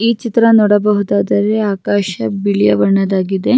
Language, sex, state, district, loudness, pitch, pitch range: Kannada, female, Karnataka, Raichur, -13 LUFS, 200 Hz, 190-215 Hz